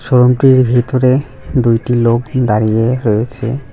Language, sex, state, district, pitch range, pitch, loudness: Bengali, male, West Bengal, Cooch Behar, 115-130 Hz, 125 Hz, -13 LUFS